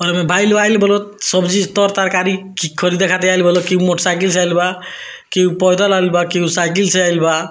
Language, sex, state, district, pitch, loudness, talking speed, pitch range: Bhojpuri, male, Bihar, Muzaffarpur, 185 Hz, -14 LUFS, 190 wpm, 175-190 Hz